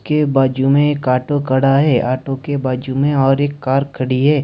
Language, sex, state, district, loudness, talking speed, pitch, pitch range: Hindi, male, Jharkhand, Deoghar, -16 LUFS, 215 wpm, 135 Hz, 130-145 Hz